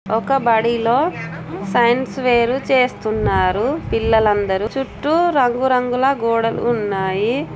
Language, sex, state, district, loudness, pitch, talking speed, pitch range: Telugu, female, Telangana, Nalgonda, -17 LUFS, 235 Hz, 80 wpm, 210-255 Hz